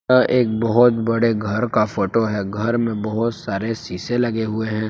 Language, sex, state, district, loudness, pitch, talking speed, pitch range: Hindi, male, Jharkhand, Palamu, -20 LUFS, 110 Hz, 195 wpm, 105-115 Hz